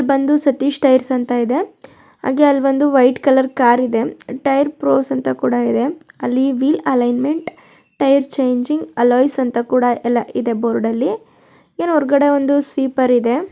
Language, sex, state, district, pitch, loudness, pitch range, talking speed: Kannada, male, Karnataka, Shimoga, 265 Hz, -16 LUFS, 245-280 Hz, 145 wpm